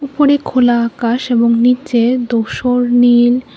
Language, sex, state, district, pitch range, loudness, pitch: Bengali, female, Tripura, West Tripura, 235-250 Hz, -13 LUFS, 245 Hz